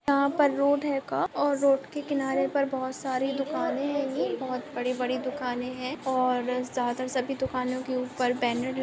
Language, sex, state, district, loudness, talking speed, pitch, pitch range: Hindi, female, Maharashtra, Chandrapur, -28 LUFS, 170 wpm, 265 Hz, 255-280 Hz